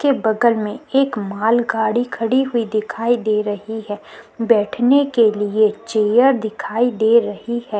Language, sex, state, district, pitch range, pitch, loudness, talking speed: Hindi, female, Uttarakhand, Tehri Garhwal, 215-240 Hz, 225 Hz, -18 LUFS, 145 wpm